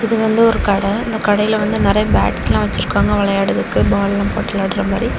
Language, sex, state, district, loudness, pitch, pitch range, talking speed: Tamil, female, Tamil Nadu, Kanyakumari, -16 LUFS, 205 Hz, 200-220 Hz, 185 wpm